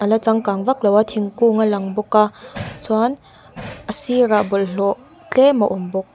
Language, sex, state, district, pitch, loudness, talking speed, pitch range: Mizo, female, Mizoram, Aizawl, 215 Hz, -18 LUFS, 165 wpm, 200-235 Hz